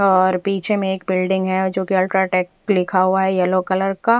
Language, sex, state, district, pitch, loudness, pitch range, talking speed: Hindi, female, Punjab, Fazilka, 190 Hz, -18 LUFS, 185-195 Hz, 215 wpm